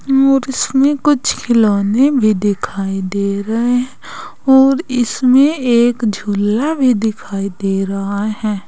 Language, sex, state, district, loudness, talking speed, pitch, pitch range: Hindi, female, Uttar Pradesh, Saharanpur, -14 LUFS, 125 wpm, 230 Hz, 200-265 Hz